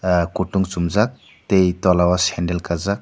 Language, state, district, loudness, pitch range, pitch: Kokborok, Tripura, Dhalai, -19 LUFS, 85-95 Hz, 90 Hz